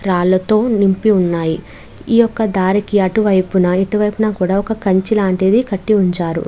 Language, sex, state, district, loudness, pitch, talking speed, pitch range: Telugu, female, Andhra Pradesh, Krishna, -15 LUFS, 195 Hz, 150 wpm, 185-215 Hz